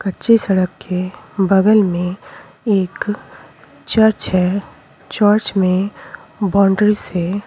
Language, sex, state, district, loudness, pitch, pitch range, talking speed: Hindi, female, Chhattisgarh, Kabirdham, -16 LUFS, 195 Hz, 185-210 Hz, 95 wpm